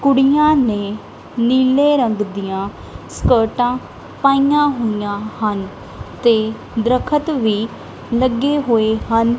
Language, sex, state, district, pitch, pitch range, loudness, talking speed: Punjabi, female, Punjab, Kapurthala, 235 Hz, 215-275 Hz, -17 LUFS, 95 wpm